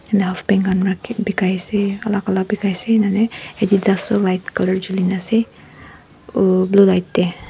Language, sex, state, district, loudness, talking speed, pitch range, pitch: Nagamese, female, Nagaland, Dimapur, -18 LUFS, 190 wpm, 185-205 Hz, 195 Hz